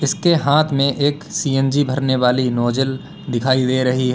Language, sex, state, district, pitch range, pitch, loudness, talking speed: Hindi, male, Uttar Pradesh, Lalitpur, 130-145 Hz, 135 Hz, -17 LUFS, 175 wpm